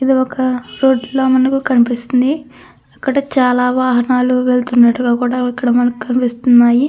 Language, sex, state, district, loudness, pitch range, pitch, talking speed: Telugu, female, Andhra Pradesh, Krishna, -14 LUFS, 245-260 Hz, 250 Hz, 120 wpm